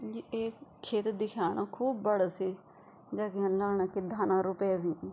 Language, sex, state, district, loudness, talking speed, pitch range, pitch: Garhwali, female, Uttarakhand, Tehri Garhwal, -33 LUFS, 165 wpm, 185-215 Hz, 195 Hz